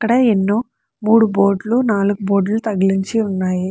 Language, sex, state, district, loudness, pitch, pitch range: Telugu, female, Andhra Pradesh, Chittoor, -16 LUFS, 205 Hz, 195-225 Hz